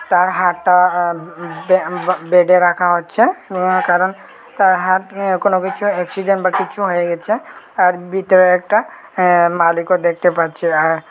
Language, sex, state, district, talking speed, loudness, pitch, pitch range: Bengali, male, Tripura, Unakoti, 140 wpm, -15 LUFS, 180 Hz, 175-190 Hz